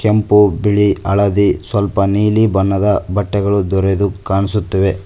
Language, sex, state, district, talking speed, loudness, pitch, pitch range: Kannada, male, Karnataka, Koppal, 105 wpm, -14 LUFS, 100 Hz, 95-105 Hz